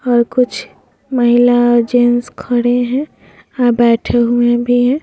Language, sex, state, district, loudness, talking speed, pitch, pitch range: Hindi, female, Bihar, Vaishali, -13 LUFS, 130 wpm, 245 Hz, 240-245 Hz